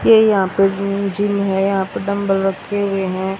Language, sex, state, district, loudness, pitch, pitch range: Hindi, female, Haryana, Rohtak, -17 LUFS, 195 Hz, 195-200 Hz